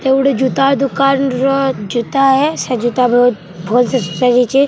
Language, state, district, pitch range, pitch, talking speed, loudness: Sambalpuri, Odisha, Sambalpur, 245-275 Hz, 260 Hz, 190 wpm, -14 LUFS